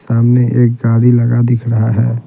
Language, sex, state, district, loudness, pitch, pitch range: Hindi, male, Bihar, Patna, -12 LUFS, 120 Hz, 115-120 Hz